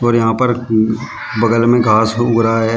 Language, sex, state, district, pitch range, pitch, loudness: Hindi, male, Uttar Pradesh, Shamli, 115-120 Hz, 115 Hz, -14 LUFS